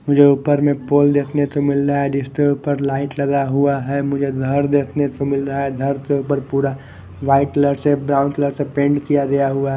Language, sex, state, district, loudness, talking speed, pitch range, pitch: Hindi, male, Maharashtra, Mumbai Suburban, -18 LUFS, 220 wpm, 140-145 Hz, 140 Hz